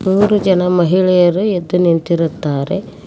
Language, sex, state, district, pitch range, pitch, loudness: Kannada, female, Karnataka, Koppal, 170-190 Hz, 180 Hz, -14 LUFS